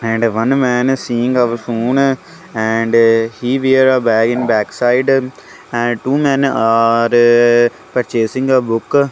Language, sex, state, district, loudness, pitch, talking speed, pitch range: English, male, Punjab, Kapurthala, -14 LUFS, 120 Hz, 130 wpm, 115-130 Hz